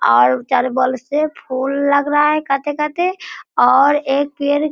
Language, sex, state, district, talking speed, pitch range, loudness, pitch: Hindi, female, Bihar, Sitamarhi, 165 wpm, 260-300 Hz, -16 LUFS, 285 Hz